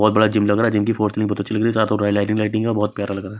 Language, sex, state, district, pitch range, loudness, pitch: Hindi, male, Maharashtra, Mumbai Suburban, 105-110 Hz, -19 LUFS, 105 Hz